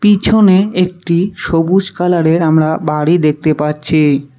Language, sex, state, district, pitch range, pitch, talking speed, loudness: Bengali, male, West Bengal, Cooch Behar, 150-185 Hz, 170 Hz, 110 wpm, -12 LUFS